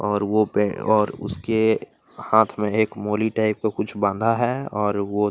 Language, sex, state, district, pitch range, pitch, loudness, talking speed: Hindi, male, Chhattisgarh, Kabirdham, 105-110 Hz, 105 Hz, -22 LUFS, 190 wpm